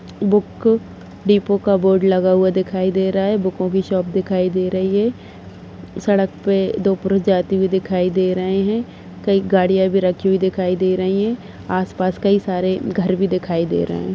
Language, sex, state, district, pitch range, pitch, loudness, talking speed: Hindi, female, Uttar Pradesh, Budaun, 185-195 Hz, 190 Hz, -18 LUFS, 190 wpm